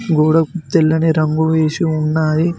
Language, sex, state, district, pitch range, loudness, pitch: Telugu, male, Telangana, Mahabubabad, 155-165 Hz, -15 LUFS, 160 Hz